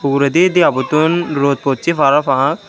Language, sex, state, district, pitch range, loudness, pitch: Chakma, male, Tripura, Unakoti, 140-170 Hz, -14 LUFS, 140 Hz